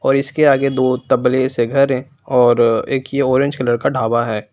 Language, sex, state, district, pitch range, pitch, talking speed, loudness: Hindi, male, Jharkhand, Palamu, 120-135 Hz, 130 Hz, 210 wpm, -16 LUFS